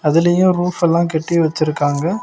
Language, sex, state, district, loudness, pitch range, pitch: Tamil, male, Tamil Nadu, Kanyakumari, -16 LUFS, 155-175 Hz, 170 Hz